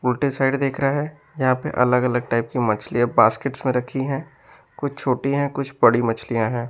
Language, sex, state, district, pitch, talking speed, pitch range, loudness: Hindi, male, Bihar, West Champaran, 130 Hz, 195 wpm, 120-140 Hz, -21 LUFS